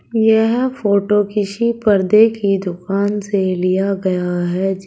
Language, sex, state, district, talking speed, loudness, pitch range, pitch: Hindi, female, Uttar Pradesh, Shamli, 135 wpm, -16 LUFS, 190-220 Hz, 200 Hz